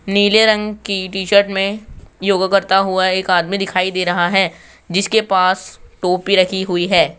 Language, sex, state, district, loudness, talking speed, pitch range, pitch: Hindi, male, Rajasthan, Jaipur, -16 LUFS, 175 wpm, 185-200 Hz, 190 Hz